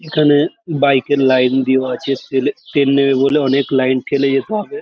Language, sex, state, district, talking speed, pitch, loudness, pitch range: Bengali, male, West Bengal, Kolkata, 185 wpm, 140 Hz, -15 LUFS, 130-145 Hz